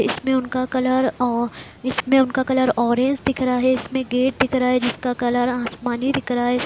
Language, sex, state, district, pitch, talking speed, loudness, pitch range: Hindi, female, Bihar, Gopalganj, 255 Hz, 200 wpm, -20 LUFS, 245-260 Hz